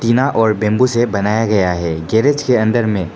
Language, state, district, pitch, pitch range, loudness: Hindi, Arunachal Pradesh, Papum Pare, 110 Hz, 105-120 Hz, -15 LUFS